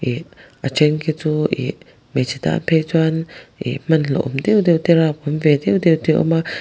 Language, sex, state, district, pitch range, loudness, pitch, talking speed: Mizo, male, Mizoram, Aizawl, 145-165 Hz, -18 LUFS, 155 Hz, 220 wpm